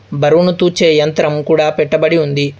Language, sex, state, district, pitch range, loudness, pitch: Telugu, male, Telangana, Adilabad, 150-165 Hz, -12 LUFS, 155 Hz